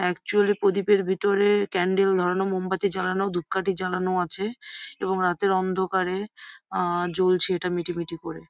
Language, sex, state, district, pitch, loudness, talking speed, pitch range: Bengali, female, West Bengal, Jhargram, 190 Hz, -24 LUFS, 135 wpm, 180-200 Hz